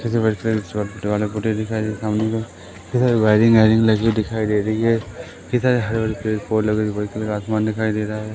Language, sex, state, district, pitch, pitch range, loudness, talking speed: Hindi, male, Madhya Pradesh, Umaria, 110 Hz, 105-110 Hz, -20 LUFS, 135 wpm